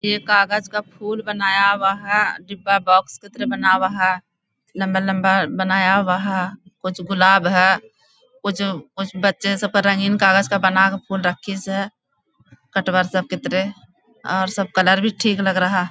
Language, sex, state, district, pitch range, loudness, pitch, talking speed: Hindi, female, Bihar, Bhagalpur, 185-200 Hz, -18 LUFS, 195 Hz, 160 wpm